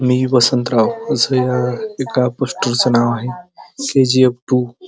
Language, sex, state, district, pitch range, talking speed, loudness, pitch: Marathi, male, Maharashtra, Pune, 125-135 Hz, 125 wpm, -16 LUFS, 125 Hz